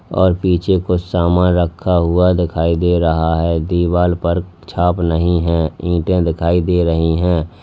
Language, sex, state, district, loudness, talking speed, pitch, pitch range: Hindi, male, Uttar Pradesh, Lalitpur, -15 LUFS, 155 wpm, 85 Hz, 85-90 Hz